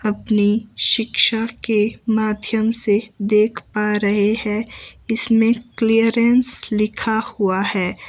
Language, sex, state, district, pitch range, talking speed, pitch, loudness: Hindi, male, Himachal Pradesh, Shimla, 210-225 Hz, 105 wpm, 220 Hz, -17 LUFS